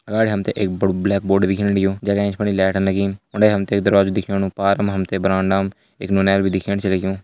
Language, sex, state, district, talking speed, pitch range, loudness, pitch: Hindi, male, Uttarakhand, Uttarkashi, 265 wpm, 95-100 Hz, -19 LUFS, 100 Hz